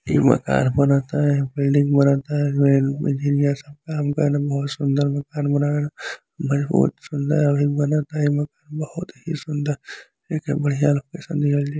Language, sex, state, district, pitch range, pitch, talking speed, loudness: Bhojpuri, male, Uttar Pradesh, Gorakhpur, 140-150 Hz, 145 Hz, 145 wpm, -21 LUFS